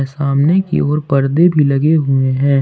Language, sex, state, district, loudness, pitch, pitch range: Hindi, male, Jharkhand, Ranchi, -13 LUFS, 140 Hz, 135-155 Hz